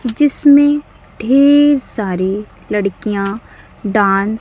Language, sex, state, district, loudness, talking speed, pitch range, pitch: Hindi, female, Bihar, West Champaran, -14 LUFS, 80 wpm, 200-285 Hz, 220 Hz